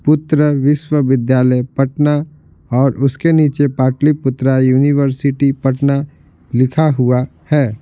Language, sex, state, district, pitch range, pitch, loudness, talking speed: Hindi, male, Bihar, Patna, 130-150 Hz, 140 Hz, -14 LUFS, 90 wpm